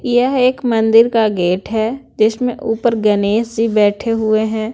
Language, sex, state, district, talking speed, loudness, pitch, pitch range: Hindi, female, Bihar, Patna, 165 wpm, -15 LUFS, 225 Hz, 215-240 Hz